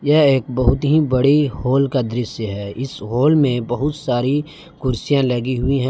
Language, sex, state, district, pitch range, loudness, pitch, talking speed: Hindi, male, Jharkhand, Palamu, 125-145 Hz, -18 LUFS, 130 Hz, 185 wpm